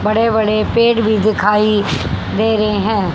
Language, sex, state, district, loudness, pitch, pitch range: Hindi, female, Haryana, Jhajjar, -14 LUFS, 215 Hz, 205-220 Hz